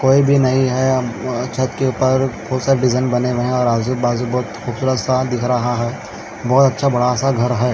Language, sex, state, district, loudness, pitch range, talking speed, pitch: Hindi, male, Haryana, Charkhi Dadri, -17 LUFS, 120-130 Hz, 230 wpm, 125 Hz